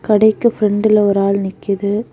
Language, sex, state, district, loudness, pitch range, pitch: Tamil, female, Tamil Nadu, Kanyakumari, -15 LUFS, 200-215 Hz, 210 Hz